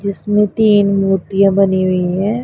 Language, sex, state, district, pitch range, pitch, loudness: Hindi, male, Punjab, Pathankot, 190-205 Hz, 195 Hz, -14 LUFS